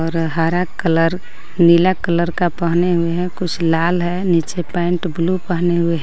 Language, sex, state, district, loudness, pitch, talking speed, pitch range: Hindi, female, Jharkhand, Garhwa, -17 LUFS, 175 Hz, 180 wpm, 165-180 Hz